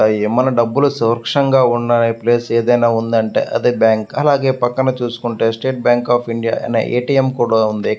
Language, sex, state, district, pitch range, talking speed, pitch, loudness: Telugu, male, Andhra Pradesh, Visakhapatnam, 115-130 Hz, 165 wpm, 120 Hz, -15 LUFS